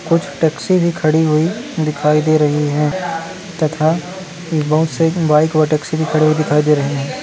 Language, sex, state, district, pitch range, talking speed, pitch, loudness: Hindi, male, Maharashtra, Nagpur, 150-165 Hz, 180 wpm, 155 Hz, -16 LUFS